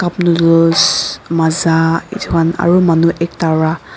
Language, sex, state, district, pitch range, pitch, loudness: Nagamese, female, Nagaland, Dimapur, 165-175 Hz, 165 Hz, -13 LUFS